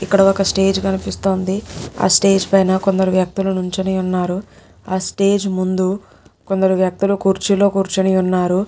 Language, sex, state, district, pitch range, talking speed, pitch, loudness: Telugu, female, Telangana, Nalgonda, 185-195 Hz, 125 wpm, 190 Hz, -17 LUFS